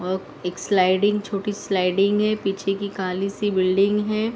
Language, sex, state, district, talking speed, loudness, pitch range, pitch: Hindi, female, Uttar Pradesh, Deoria, 165 wpm, -22 LUFS, 185-205 Hz, 195 Hz